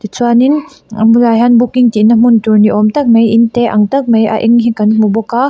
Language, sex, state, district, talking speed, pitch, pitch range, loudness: Mizo, female, Mizoram, Aizawl, 275 wpm, 230 Hz, 220-240 Hz, -9 LUFS